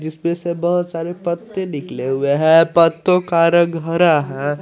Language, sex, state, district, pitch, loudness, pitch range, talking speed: Hindi, male, Jharkhand, Garhwa, 165 Hz, -17 LUFS, 155-175 Hz, 170 wpm